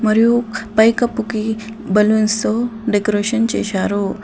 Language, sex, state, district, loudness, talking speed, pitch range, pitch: Telugu, female, Telangana, Adilabad, -17 LUFS, 70 wpm, 210-230 Hz, 220 Hz